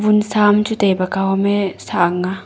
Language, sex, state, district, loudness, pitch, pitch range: Wancho, female, Arunachal Pradesh, Longding, -16 LUFS, 200 Hz, 190-210 Hz